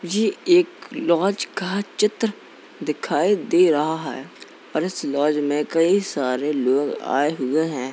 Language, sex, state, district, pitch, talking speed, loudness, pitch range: Hindi, male, Uttar Pradesh, Jalaun, 165 Hz, 145 wpm, -21 LUFS, 145-205 Hz